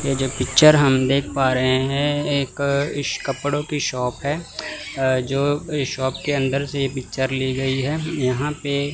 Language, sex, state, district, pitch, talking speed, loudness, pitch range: Hindi, male, Chandigarh, Chandigarh, 140 Hz, 195 wpm, -21 LUFS, 130-145 Hz